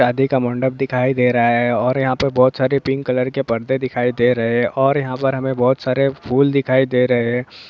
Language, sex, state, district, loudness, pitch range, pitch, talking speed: Hindi, male, Jharkhand, Jamtara, -17 LUFS, 125-135 Hz, 130 Hz, 240 wpm